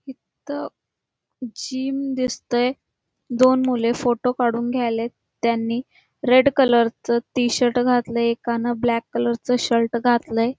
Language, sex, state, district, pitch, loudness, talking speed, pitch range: Marathi, female, Karnataka, Belgaum, 240 Hz, -21 LUFS, 125 wpm, 235-255 Hz